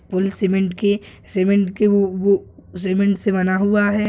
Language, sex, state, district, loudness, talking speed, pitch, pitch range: Hindi, male, Bihar, Purnia, -19 LUFS, 175 wpm, 195 Hz, 190-205 Hz